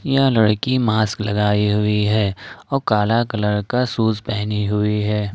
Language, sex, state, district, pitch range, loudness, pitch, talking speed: Hindi, male, Jharkhand, Ranchi, 105-115 Hz, -19 LUFS, 105 Hz, 155 wpm